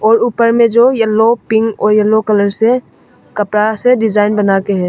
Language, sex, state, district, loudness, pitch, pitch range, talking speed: Hindi, female, Arunachal Pradesh, Longding, -12 LUFS, 220 Hz, 210-230 Hz, 185 wpm